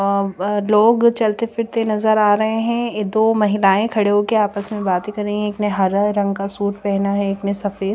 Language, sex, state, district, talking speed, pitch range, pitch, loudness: Hindi, female, Chandigarh, Chandigarh, 225 wpm, 200-220 Hz, 205 Hz, -18 LUFS